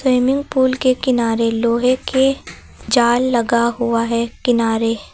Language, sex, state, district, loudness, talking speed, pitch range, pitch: Hindi, female, Uttar Pradesh, Lucknow, -17 LUFS, 130 wpm, 230-255 Hz, 240 Hz